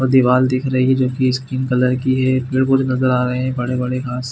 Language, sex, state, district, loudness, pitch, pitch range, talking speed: Hindi, male, Chhattisgarh, Bilaspur, -17 LUFS, 130 Hz, 125-130 Hz, 290 wpm